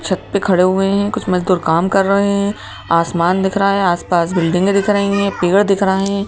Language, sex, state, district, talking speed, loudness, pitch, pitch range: Hindi, male, Madhya Pradesh, Bhopal, 240 wpm, -15 LUFS, 195 Hz, 180-200 Hz